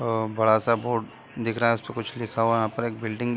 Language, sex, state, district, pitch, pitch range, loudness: Hindi, male, Chhattisgarh, Bilaspur, 115 Hz, 110-115 Hz, -25 LUFS